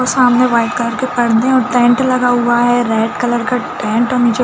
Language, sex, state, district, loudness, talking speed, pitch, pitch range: Hindi, female, Chhattisgarh, Bilaspur, -13 LUFS, 230 wpm, 245 Hz, 240-250 Hz